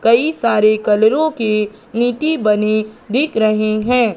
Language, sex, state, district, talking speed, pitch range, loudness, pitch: Hindi, female, Madhya Pradesh, Katni, 130 wpm, 215-245 Hz, -16 LUFS, 220 Hz